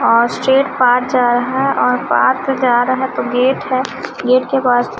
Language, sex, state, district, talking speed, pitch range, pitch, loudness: Hindi, male, Chhattisgarh, Raipur, 60 wpm, 245-265 Hz, 255 Hz, -14 LUFS